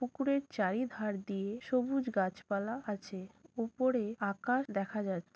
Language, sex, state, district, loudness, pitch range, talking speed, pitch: Bengali, female, West Bengal, Jhargram, -35 LUFS, 200-255 Hz, 110 wpm, 220 Hz